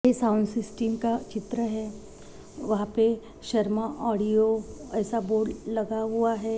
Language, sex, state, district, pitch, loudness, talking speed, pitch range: Hindi, female, Chhattisgarh, Jashpur, 220 Hz, -27 LUFS, 130 wpm, 215-230 Hz